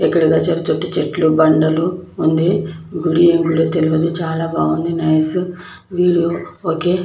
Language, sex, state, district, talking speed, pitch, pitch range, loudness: Telugu, female, Andhra Pradesh, Chittoor, 145 wpm, 165 Hz, 160-175 Hz, -16 LUFS